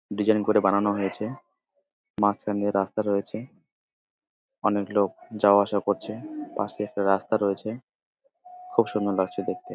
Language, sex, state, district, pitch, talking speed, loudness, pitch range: Bengali, male, West Bengal, Jalpaiguri, 105 Hz, 130 wpm, -26 LUFS, 100-110 Hz